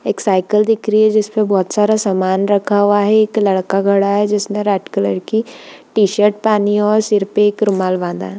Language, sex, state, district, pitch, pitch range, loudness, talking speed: Hindi, female, Jharkhand, Sahebganj, 205 Hz, 195-215 Hz, -15 LUFS, 220 wpm